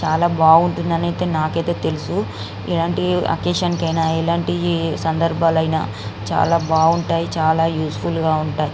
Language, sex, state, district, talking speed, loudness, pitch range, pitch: Telugu, female, Andhra Pradesh, Guntur, 110 wpm, -19 LUFS, 155-170 Hz, 165 Hz